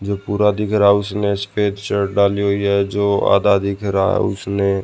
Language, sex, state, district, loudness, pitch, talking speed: Hindi, male, Haryana, Rohtak, -17 LUFS, 100 Hz, 225 wpm